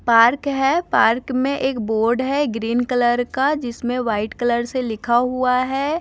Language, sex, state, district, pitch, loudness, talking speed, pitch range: Hindi, female, Bihar, West Champaran, 245 Hz, -19 LUFS, 170 wpm, 235-265 Hz